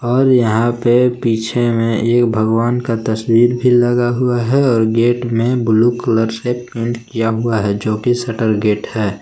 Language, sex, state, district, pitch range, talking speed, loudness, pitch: Hindi, male, Jharkhand, Palamu, 115-120 Hz, 175 wpm, -15 LUFS, 115 Hz